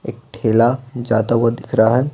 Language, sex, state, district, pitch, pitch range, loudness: Hindi, male, Bihar, Patna, 115 Hz, 115-125 Hz, -17 LUFS